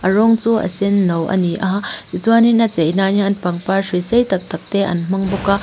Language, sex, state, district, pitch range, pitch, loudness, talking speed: Mizo, female, Mizoram, Aizawl, 180-205 Hz, 195 Hz, -16 LUFS, 245 wpm